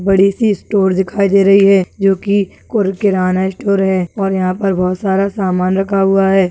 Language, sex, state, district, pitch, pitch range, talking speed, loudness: Hindi, female, Rajasthan, Churu, 195 Hz, 190-200 Hz, 205 wpm, -14 LUFS